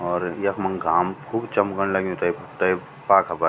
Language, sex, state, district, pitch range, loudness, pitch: Garhwali, male, Uttarakhand, Tehri Garhwal, 90-100 Hz, -23 LUFS, 95 Hz